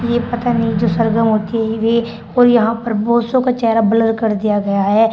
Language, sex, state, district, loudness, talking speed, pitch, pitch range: Hindi, female, Uttar Pradesh, Shamli, -15 LUFS, 235 wpm, 225 Hz, 220-235 Hz